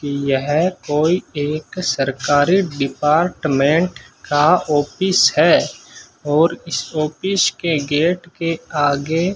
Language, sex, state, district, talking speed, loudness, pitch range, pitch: Hindi, male, Rajasthan, Bikaner, 105 wpm, -17 LUFS, 145-175 Hz, 155 Hz